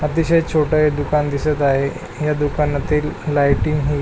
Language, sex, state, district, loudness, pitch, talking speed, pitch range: Marathi, male, Maharashtra, Pune, -18 LUFS, 150 Hz, 150 wpm, 145-150 Hz